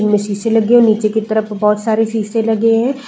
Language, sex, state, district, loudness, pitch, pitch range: Hindi, female, Uttar Pradesh, Deoria, -14 LUFS, 220 Hz, 215-225 Hz